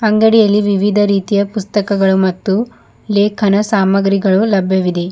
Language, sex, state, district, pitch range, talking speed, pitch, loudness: Kannada, female, Karnataka, Bidar, 195-210 Hz, 95 wpm, 200 Hz, -13 LUFS